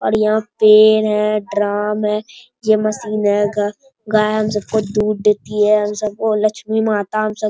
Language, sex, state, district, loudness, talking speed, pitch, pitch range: Hindi, male, Bihar, Bhagalpur, -16 LUFS, 185 wpm, 215 Hz, 210-215 Hz